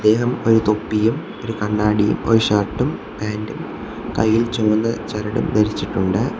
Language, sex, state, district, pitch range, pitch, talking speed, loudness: Malayalam, male, Kerala, Kollam, 105-115 Hz, 110 Hz, 115 wpm, -19 LUFS